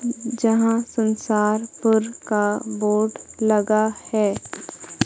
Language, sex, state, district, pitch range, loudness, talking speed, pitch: Hindi, female, Madhya Pradesh, Katni, 215-225 Hz, -21 LUFS, 70 wpm, 220 Hz